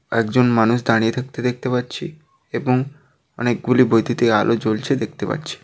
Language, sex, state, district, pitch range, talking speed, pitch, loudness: Bengali, male, West Bengal, Jalpaiguri, 115-125 Hz, 150 wpm, 120 Hz, -19 LUFS